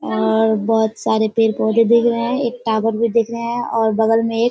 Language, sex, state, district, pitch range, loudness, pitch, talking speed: Hindi, female, Bihar, Kishanganj, 220-235 Hz, -17 LUFS, 225 Hz, 255 wpm